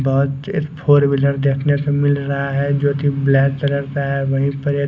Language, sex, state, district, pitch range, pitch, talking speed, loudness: Hindi, male, Chandigarh, Chandigarh, 140-145 Hz, 140 Hz, 210 wpm, -17 LUFS